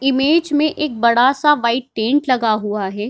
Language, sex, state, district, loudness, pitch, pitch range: Hindi, female, Bihar, Darbhanga, -16 LUFS, 255 Hz, 225-295 Hz